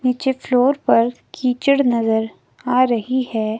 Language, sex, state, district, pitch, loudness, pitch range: Hindi, female, Himachal Pradesh, Shimla, 250 Hz, -18 LUFS, 230-260 Hz